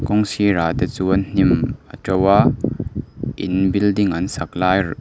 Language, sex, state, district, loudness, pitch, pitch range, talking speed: Mizo, male, Mizoram, Aizawl, -18 LUFS, 95 Hz, 95-100 Hz, 165 wpm